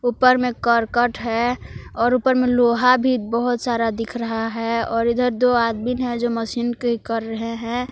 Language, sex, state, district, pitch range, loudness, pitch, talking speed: Hindi, female, Jharkhand, Palamu, 230-245 Hz, -20 LUFS, 240 Hz, 190 wpm